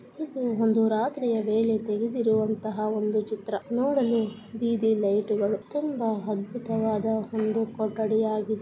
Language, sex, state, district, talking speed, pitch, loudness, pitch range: Kannada, female, Karnataka, Gulbarga, 95 wpm, 220 Hz, -27 LUFS, 215-230 Hz